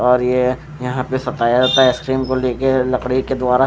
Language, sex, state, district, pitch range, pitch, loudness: Hindi, male, Himachal Pradesh, Shimla, 125-130 Hz, 130 Hz, -17 LUFS